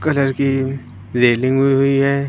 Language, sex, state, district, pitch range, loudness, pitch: Hindi, male, Uttar Pradesh, Lucknow, 130-140 Hz, -16 LUFS, 135 Hz